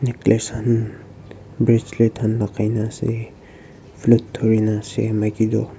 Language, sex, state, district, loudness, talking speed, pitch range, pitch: Nagamese, male, Nagaland, Kohima, -20 LUFS, 145 wpm, 110-115 Hz, 110 Hz